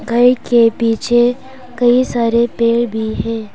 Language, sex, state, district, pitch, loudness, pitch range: Hindi, female, Arunachal Pradesh, Papum Pare, 235 Hz, -14 LUFS, 230-245 Hz